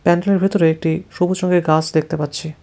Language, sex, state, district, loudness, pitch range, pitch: Bengali, male, West Bengal, Cooch Behar, -18 LUFS, 160-180 Hz, 165 Hz